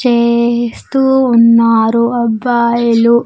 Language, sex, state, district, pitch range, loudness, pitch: Telugu, female, Andhra Pradesh, Sri Satya Sai, 230-240 Hz, -11 LUFS, 235 Hz